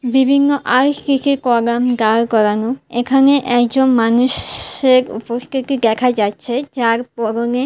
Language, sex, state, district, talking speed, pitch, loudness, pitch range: Bengali, female, Tripura, West Tripura, 95 wpm, 245 Hz, -15 LUFS, 230-265 Hz